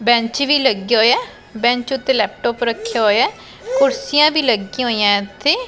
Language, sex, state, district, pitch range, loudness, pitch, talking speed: Punjabi, female, Punjab, Pathankot, 225-290 Hz, -16 LUFS, 240 Hz, 160 wpm